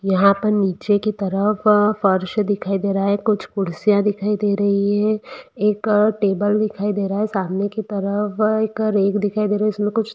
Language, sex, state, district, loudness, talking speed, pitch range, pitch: Hindi, female, Jharkhand, Jamtara, -19 LUFS, 195 wpm, 200-215 Hz, 205 Hz